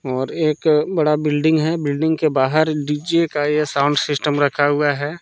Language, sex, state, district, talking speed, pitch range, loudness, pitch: Hindi, male, Jharkhand, Palamu, 185 wpm, 145-155 Hz, -18 LUFS, 150 Hz